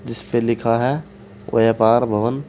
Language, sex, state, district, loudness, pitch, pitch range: Hindi, male, Uttar Pradesh, Saharanpur, -18 LUFS, 115 Hz, 115-120 Hz